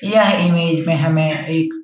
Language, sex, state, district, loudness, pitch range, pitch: Hindi, male, Bihar, Jahanabad, -16 LUFS, 160-175 Hz, 165 Hz